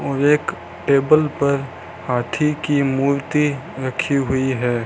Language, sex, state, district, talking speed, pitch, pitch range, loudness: Hindi, male, Rajasthan, Bikaner, 125 wpm, 140 Hz, 130-150 Hz, -19 LUFS